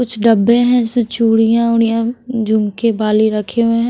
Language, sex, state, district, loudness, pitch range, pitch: Hindi, female, Bihar, West Champaran, -14 LUFS, 220-235 Hz, 230 Hz